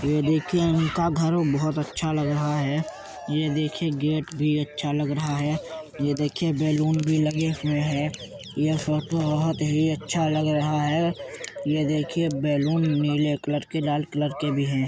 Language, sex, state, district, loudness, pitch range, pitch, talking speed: Hindi, male, Uttar Pradesh, Jyotiba Phule Nagar, -25 LUFS, 145-155 Hz, 150 Hz, 175 wpm